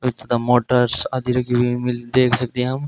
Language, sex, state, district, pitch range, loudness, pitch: Hindi, male, Rajasthan, Bikaner, 120-125 Hz, -19 LUFS, 125 Hz